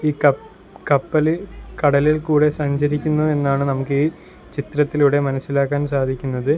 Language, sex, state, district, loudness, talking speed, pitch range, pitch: Malayalam, male, Kerala, Kollam, -19 LUFS, 110 wpm, 140-150 Hz, 145 Hz